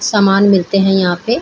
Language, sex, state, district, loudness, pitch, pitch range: Hindi, female, Bihar, Saran, -12 LUFS, 195 Hz, 190-205 Hz